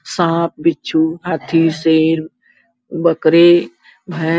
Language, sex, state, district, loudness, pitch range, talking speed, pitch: Hindi, female, Uttar Pradesh, Gorakhpur, -14 LUFS, 160-170 Hz, 95 wpm, 165 Hz